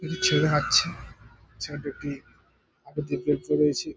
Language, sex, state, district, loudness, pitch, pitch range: Bengali, male, West Bengal, Jhargram, -26 LUFS, 145 Hz, 120-150 Hz